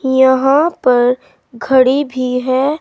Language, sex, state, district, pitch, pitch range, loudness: Hindi, female, Uttar Pradesh, Saharanpur, 260 Hz, 255-275 Hz, -13 LUFS